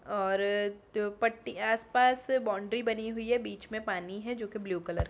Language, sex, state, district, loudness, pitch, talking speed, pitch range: Hindi, female, Bihar, Gaya, -32 LUFS, 220 Hz, 190 wpm, 205-230 Hz